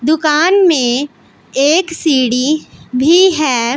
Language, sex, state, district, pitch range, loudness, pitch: Hindi, female, Punjab, Pathankot, 255-330 Hz, -12 LUFS, 300 Hz